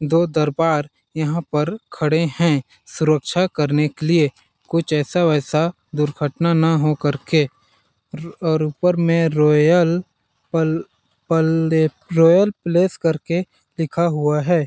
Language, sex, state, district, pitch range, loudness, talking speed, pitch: Hindi, male, Chhattisgarh, Balrampur, 150-170 Hz, -19 LUFS, 125 wpm, 160 Hz